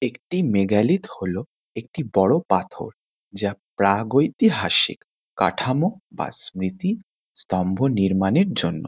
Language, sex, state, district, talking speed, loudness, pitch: Bengali, male, West Bengal, Kolkata, 95 wpm, -22 LUFS, 115 Hz